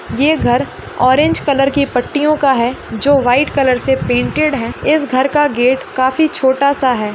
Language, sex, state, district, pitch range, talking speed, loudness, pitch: Hindi, female, Rajasthan, Churu, 255-290 Hz, 185 wpm, -14 LUFS, 270 Hz